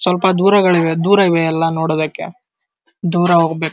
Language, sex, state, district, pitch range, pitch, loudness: Kannada, male, Karnataka, Dharwad, 165-195 Hz, 175 Hz, -14 LUFS